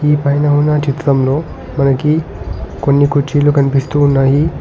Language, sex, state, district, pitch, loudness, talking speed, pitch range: Telugu, male, Telangana, Hyderabad, 140 Hz, -13 LUFS, 115 wpm, 135-150 Hz